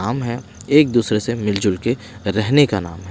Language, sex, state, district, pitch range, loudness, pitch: Hindi, male, Himachal Pradesh, Shimla, 100-120 Hz, -18 LUFS, 110 Hz